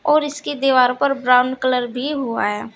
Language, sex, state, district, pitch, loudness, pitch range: Hindi, female, Uttar Pradesh, Saharanpur, 260 Hz, -18 LUFS, 250-280 Hz